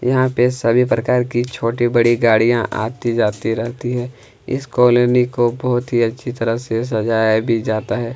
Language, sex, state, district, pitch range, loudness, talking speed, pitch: Hindi, male, Chhattisgarh, Kabirdham, 115-125 Hz, -17 LUFS, 175 wpm, 120 Hz